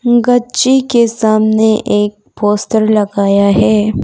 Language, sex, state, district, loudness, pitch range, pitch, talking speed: Hindi, female, Arunachal Pradesh, Papum Pare, -12 LUFS, 210-240 Hz, 220 Hz, 105 wpm